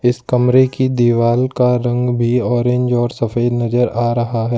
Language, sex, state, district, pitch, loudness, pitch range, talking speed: Hindi, male, Jharkhand, Ranchi, 120 Hz, -15 LUFS, 120-125 Hz, 170 wpm